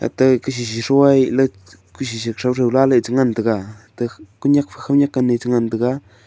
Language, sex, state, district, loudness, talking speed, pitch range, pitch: Wancho, male, Arunachal Pradesh, Longding, -18 LUFS, 180 wpm, 115-130 Hz, 120 Hz